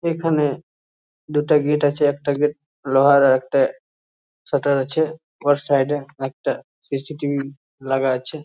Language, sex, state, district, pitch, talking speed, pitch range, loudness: Bengali, male, West Bengal, Jhargram, 140 Hz, 135 wpm, 135-150 Hz, -20 LUFS